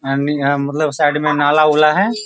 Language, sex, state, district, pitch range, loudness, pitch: Hindi, male, Bihar, Sitamarhi, 145-155 Hz, -15 LUFS, 150 Hz